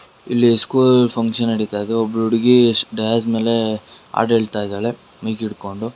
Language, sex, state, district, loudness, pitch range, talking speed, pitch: Kannada, male, Karnataka, Bangalore, -18 LUFS, 110-115 Hz, 140 wpm, 115 Hz